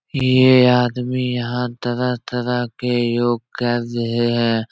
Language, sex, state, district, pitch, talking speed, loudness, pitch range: Hindi, male, Bihar, Supaul, 120 Hz, 115 wpm, -18 LUFS, 120-125 Hz